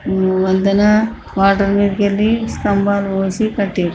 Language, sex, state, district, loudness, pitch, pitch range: Telugu, female, Andhra Pradesh, Srikakulam, -15 LUFS, 200 Hz, 195-205 Hz